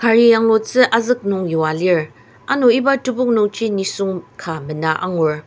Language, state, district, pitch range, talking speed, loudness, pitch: Ao, Nagaland, Dimapur, 160-235 Hz, 155 wpm, -17 LUFS, 200 Hz